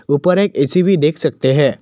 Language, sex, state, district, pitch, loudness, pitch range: Hindi, male, Assam, Kamrup Metropolitan, 160 Hz, -14 LUFS, 140-185 Hz